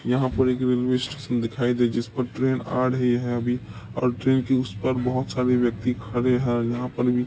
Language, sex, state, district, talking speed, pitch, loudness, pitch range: Maithili, male, Bihar, Supaul, 225 wpm, 125 Hz, -24 LUFS, 120-130 Hz